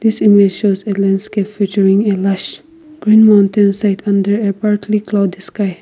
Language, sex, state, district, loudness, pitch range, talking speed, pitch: English, female, Nagaland, Kohima, -13 LUFS, 195-210 Hz, 135 wpm, 205 Hz